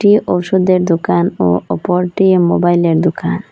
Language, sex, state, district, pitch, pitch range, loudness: Bengali, female, Assam, Hailakandi, 175 Hz, 165-185 Hz, -13 LUFS